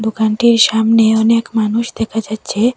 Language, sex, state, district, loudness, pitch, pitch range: Bengali, female, Assam, Hailakandi, -14 LUFS, 225 Hz, 220-230 Hz